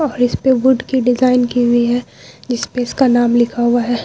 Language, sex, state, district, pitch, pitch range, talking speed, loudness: Hindi, female, Bihar, Vaishali, 245 Hz, 240-255 Hz, 205 wpm, -15 LUFS